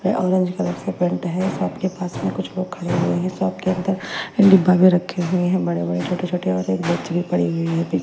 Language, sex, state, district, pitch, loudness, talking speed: Hindi, female, Delhi, New Delhi, 180 Hz, -20 LUFS, 230 wpm